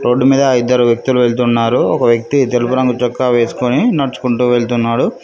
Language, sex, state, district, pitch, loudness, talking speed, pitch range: Telugu, male, Telangana, Mahabubabad, 125 Hz, -13 LUFS, 150 wpm, 120-130 Hz